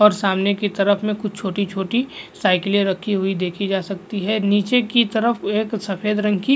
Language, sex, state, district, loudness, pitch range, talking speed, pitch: Hindi, male, Bihar, Vaishali, -20 LUFS, 195-215 Hz, 190 wpm, 205 Hz